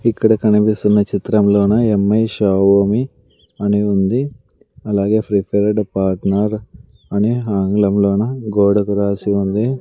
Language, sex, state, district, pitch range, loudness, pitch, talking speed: Telugu, male, Andhra Pradesh, Sri Satya Sai, 100-110 Hz, -16 LUFS, 105 Hz, 100 wpm